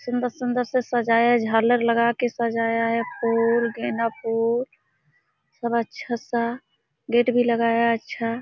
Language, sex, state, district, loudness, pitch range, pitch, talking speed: Hindi, female, Jharkhand, Sahebganj, -23 LUFS, 230-245 Hz, 235 Hz, 130 wpm